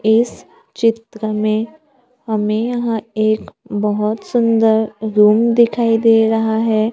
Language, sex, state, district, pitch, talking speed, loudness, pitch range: Hindi, female, Maharashtra, Gondia, 220 Hz, 110 wpm, -16 LUFS, 215-230 Hz